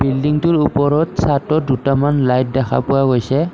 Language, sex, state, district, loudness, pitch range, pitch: Assamese, male, Assam, Kamrup Metropolitan, -16 LUFS, 135-150 Hz, 140 Hz